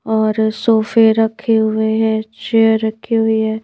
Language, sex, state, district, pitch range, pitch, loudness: Hindi, female, Madhya Pradesh, Bhopal, 220-225 Hz, 220 Hz, -15 LUFS